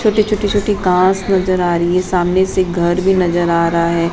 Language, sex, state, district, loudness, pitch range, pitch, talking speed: Hindi, female, Madhya Pradesh, Umaria, -15 LUFS, 175-190 Hz, 185 Hz, 245 wpm